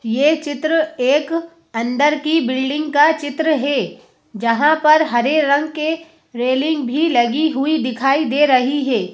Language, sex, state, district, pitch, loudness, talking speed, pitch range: Hindi, female, Madhya Pradesh, Bhopal, 290 Hz, -17 LUFS, 145 wpm, 260-310 Hz